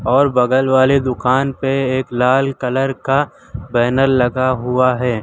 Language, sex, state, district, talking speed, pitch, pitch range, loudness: Hindi, male, Uttar Pradesh, Lucknow, 150 wpm, 130 Hz, 125-135 Hz, -16 LUFS